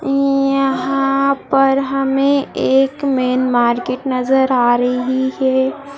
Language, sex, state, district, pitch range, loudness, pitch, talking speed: Hindi, female, Bihar, Gaya, 255-275 Hz, -16 LUFS, 270 Hz, 100 wpm